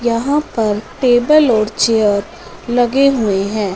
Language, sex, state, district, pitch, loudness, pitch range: Hindi, female, Punjab, Fazilka, 230 Hz, -14 LUFS, 210-255 Hz